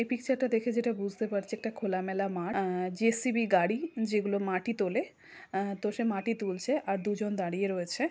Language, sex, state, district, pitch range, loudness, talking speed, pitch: Bengali, female, West Bengal, Jhargram, 195-235 Hz, -31 LUFS, 185 wpm, 210 Hz